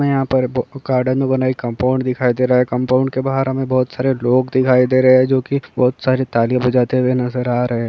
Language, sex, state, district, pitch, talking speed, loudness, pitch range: Hindi, male, Bihar, Kishanganj, 130 Hz, 250 wpm, -16 LUFS, 125-130 Hz